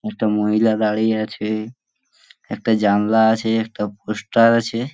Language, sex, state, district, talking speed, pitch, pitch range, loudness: Bengali, male, West Bengal, Purulia, 145 wpm, 110 Hz, 105-115 Hz, -19 LUFS